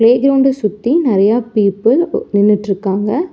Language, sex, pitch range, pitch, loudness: Tamil, female, 205-270 Hz, 230 Hz, -14 LUFS